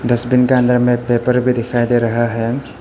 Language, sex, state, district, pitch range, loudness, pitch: Hindi, male, Arunachal Pradesh, Papum Pare, 120-125 Hz, -15 LUFS, 120 Hz